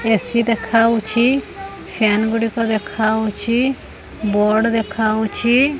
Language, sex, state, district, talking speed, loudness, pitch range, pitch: Odia, female, Odisha, Khordha, 85 wpm, -17 LUFS, 220-235 Hz, 225 Hz